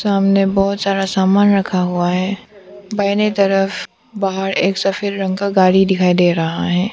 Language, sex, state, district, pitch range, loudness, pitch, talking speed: Hindi, female, Arunachal Pradesh, Papum Pare, 185-200 Hz, -16 LUFS, 195 Hz, 165 wpm